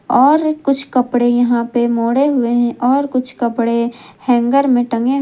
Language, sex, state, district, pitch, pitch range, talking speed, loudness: Hindi, female, Jharkhand, Garhwa, 245 Hz, 235-270 Hz, 170 wpm, -15 LUFS